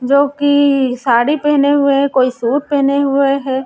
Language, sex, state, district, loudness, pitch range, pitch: Hindi, female, Chhattisgarh, Raipur, -13 LUFS, 260-285 Hz, 275 Hz